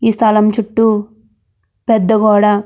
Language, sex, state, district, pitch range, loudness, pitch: Telugu, female, Andhra Pradesh, Krishna, 205-220 Hz, -13 LUFS, 215 Hz